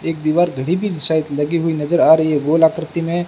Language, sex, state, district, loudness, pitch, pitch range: Hindi, male, Rajasthan, Bikaner, -16 LUFS, 165 Hz, 155-170 Hz